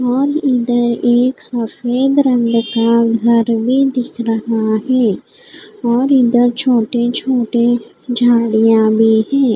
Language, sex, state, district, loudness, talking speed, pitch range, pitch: Hindi, female, Odisha, Khordha, -14 LUFS, 115 wpm, 230-255 Hz, 240 Hz